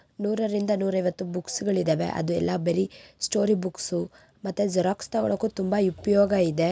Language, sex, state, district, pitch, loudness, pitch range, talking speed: Kannada, female, Karnataka, Bijapur, 195 Hz, -26 LUFS, 180-205 Hz, 150 wpm